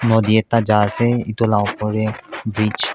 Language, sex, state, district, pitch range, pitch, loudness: Nagamese, male, Nagaland, Kohima, 105-115 Hz, 110 Hz, -18 LUFS